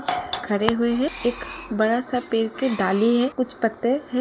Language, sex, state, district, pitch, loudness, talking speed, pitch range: Hindi, female, Uttar Pradesh, Jalaun, 240 Hz, -23 LUFS, 185 wpm, 225-260 Hz